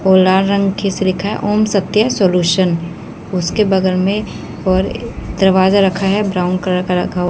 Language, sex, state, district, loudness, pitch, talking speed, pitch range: Hindi, female, Haryana, Jhajjar, -15 LUFS, 190 Hz, 175 wpm, 185-200 Hz